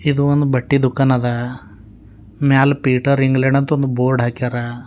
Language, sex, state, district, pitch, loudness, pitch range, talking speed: Kannada, male, Karnataka, Bidar, 130 Hz, -16 LUFS, 120-140 Hz, 150 wpm